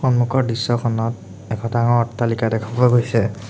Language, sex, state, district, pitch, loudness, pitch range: Assamese, male, Assam, Sonitpur, 115 Hz, -19 LUFS, 115-120 Hz